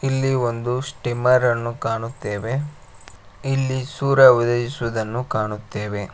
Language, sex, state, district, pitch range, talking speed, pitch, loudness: Kannada, male, Karnataka, Koppal, 110-130 Hz, 80 wpm, 120 Hz, -21 LUFS